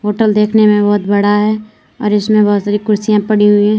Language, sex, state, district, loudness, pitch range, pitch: Hindi, female, Uttar Pradesh, Lalitpur, -12 LUFS, 205-215 Hz, 210 Hz